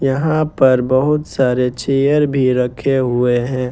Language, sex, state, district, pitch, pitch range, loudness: Hindi, male, Jharkhand, Ranchi, 130 Hz, 125-140 Hz, -15 LUFS